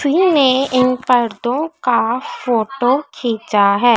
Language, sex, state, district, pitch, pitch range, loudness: Hindi, female, Madhya Pradesh, Dhar, 250 Hz, 235-270 Hz, -16 LUFS